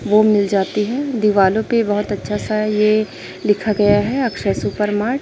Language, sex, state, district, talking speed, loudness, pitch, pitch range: Hindi, female, Chhattisgarh, Raipur, 195 wpm, -17 LUFS, 210 Hz, 205-220 Hz